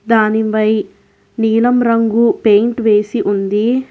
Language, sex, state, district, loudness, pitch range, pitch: Telugu, female, Telangana, Hyderabad, -13 LUFS, 215-230 Hz, 220 Hz